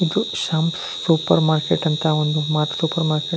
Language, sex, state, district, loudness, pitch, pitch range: Kannada, male, Karnataka, Shimoga, -20 LUFS, 160 Hz, 155-165 Hz